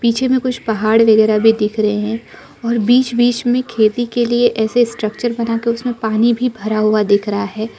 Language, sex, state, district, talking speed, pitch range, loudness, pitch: Hindi, female, Arunachal Pradesh, Lower Dibang Valley, 210 wpm, 215-240 Hz, -15 LUFS, 230 Hz